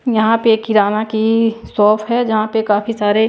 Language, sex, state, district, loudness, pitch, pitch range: Hindi, female, Punjab, Pathankot, -15 LUFS, 220 Hz, 215-225 Hz